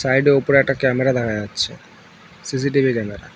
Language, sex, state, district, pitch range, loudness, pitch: Bengali, male, West Bengal, Alipurduar, 115-140 Hz, -18 LUFS, 135 Hz